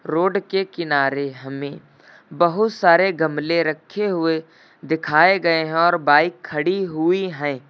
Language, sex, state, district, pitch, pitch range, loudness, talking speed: Hindi, male, Uttar Pradesh, Lucknow, 165 Hz, 150-180 Hz, -19 LUFS, 130 wpm